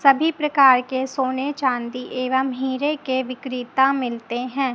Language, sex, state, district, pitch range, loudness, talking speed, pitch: Hindi, female, Chhattisgarh, Raipur, 255-275 Hz, -21 LUFS, 140 wpm, 260 Hz